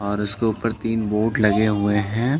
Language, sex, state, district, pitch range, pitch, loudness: Hindi, male, Uttar Pradesh, Jalaun, 105-115 Hz, 110 Hz, -21 LUFS